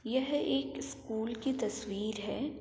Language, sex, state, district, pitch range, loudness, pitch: Hindi, female, Uttar Pradesh, Varanasi, 200-265 Hz, -35 LUFS, 220 Hz